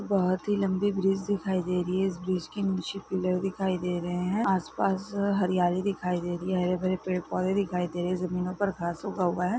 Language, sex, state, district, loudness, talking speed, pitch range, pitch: Hindi, male, Jharkhand, Jamtara, -29 LUFS, 225 wpm, 180-195 Hz, 185 Hz